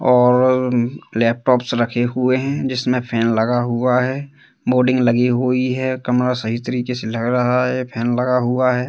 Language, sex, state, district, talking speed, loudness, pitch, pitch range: Hindi, male, Madhya Pradesh, Katni, 175 wpm, -18 LUFS, 125 Hz, 120-125 Hz